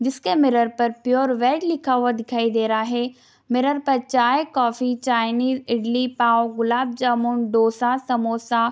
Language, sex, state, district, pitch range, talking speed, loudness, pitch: Hindi, female, Bihar, Darbhanga, 230-255 Hz, 165 wpm, -21 LUFS, 245 Hz